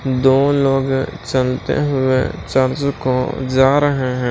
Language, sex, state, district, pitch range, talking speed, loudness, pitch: Hindi, male, Maharashtra, Washim, 130-135 Hz, 125 wpm, -17 LUFS, 130 Hz